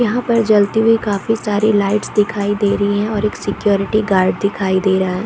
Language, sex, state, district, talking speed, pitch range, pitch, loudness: Hindi, female, Chhattisgarh, Korba, 205 wpm, 200-215 Hz, 205 Hz, -16 LUFS